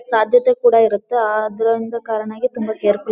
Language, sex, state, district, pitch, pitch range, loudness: Kannada, female, Karnataka, Dharwad, 225 Hz, 215-240 Hz, -17 LUFS